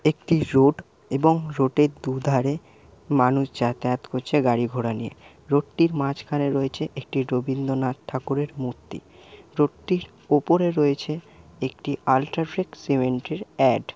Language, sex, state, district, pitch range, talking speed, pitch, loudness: Bengali, male, West Bengal, Malda, 130-150 Hz, 125 wpm, 140 Hz, -24 LUFS